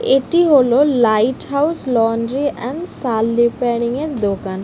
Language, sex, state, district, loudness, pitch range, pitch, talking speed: Bengali, female, West Bengal, Kolkata, -16 LUFS, 230-280 Hz, 250 Hz, 130 wpm